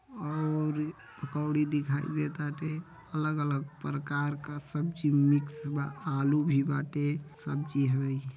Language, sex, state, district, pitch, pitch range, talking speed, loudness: Bhojpuri, male, Uttar Pradesh, Deoria, 145 Hz, 145-155 Hz, 115 wpm, -31 LUFS